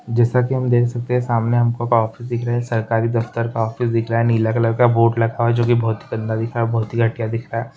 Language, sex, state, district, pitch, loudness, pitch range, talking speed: Hindi, male, West Bengal, Jalpaiguri, 115 Hz, -19 LUFS, 115-120 Hz, 310 wpm